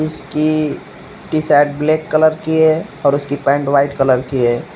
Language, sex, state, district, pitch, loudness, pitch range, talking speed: Hindi, male, Uttar Pradesh, Lucknow, 145 Hz, -15 LUFS, 140-155 Hz, 165 wpm